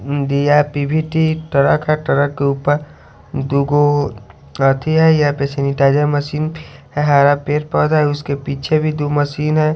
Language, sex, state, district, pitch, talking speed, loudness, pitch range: Hindi, male, Haryana, Charkhi Dadri, 145 Hz, 140 wpm, -16 LUFS, 140-155 Hz